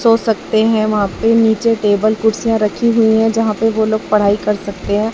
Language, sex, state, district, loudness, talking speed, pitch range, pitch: Hindi, male, Chhattisgarh, Raipur, -14 LUFS, 220 wpm, 210-225 Hz, 220 Hz